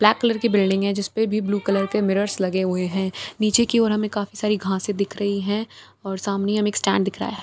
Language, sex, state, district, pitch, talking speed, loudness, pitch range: Hindi, female, Bihar, Katihar, 205 Hz, 260 wpm, -22 LUFS, 195-215 Hz